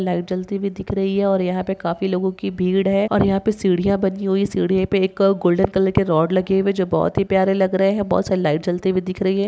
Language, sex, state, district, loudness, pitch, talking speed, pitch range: Hindi, female, Rajasthan, Nagaur, -19 LUFS, 190 Hz, 290 wpm, 185-195 Hz